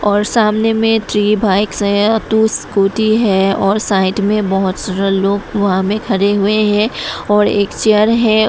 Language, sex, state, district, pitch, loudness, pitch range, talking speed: Hindi, female, Tripura, West Tripura, 205 Hz, -14 LUFS, 195-215 Hz, 160 wpm